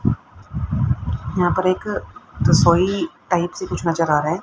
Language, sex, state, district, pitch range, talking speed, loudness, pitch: Hindi, female, Haryana, Rohtak, 165-185 Hz, 150 wpm, -20 LUFS, 175 Hz